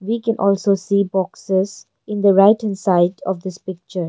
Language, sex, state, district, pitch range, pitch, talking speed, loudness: English, female, Arunachal Pradesh, Longding, 185-205 Hz, 195 Hz, 175 wpm, -18 LUFS